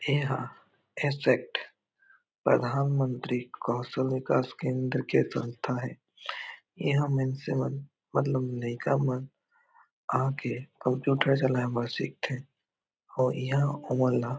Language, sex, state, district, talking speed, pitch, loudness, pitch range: Chhattisgarhi, male, Chhattisgarh, Raigarh, 100 wpm, 130 Hz, -29 LUFS, 125-140 Hz